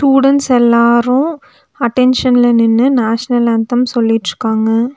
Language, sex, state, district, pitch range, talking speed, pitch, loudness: Tamil, female, Tamil Nadu, Nilgiris, 230-255 Hz, 85 wpm, 245 Hz, -12 LUFS